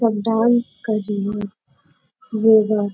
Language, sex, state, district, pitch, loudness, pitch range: Hindi, female, Bihar, Bhagalpur, 215 Hz, -19 LUFS, 200-225 Hz